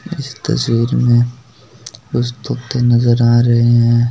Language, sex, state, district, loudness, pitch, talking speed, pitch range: Hindi, male, Rajasthan, Nagaur, -14 LUFS, 120 Hz, 130 wpm, 120-125 Hz